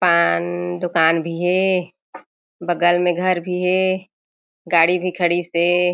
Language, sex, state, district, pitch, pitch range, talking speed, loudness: Chhattisgarhi, female, Chhattisgarh, Jashpur, 175 Hz, 170-180 Hz, 130 wpm, -18 LUFS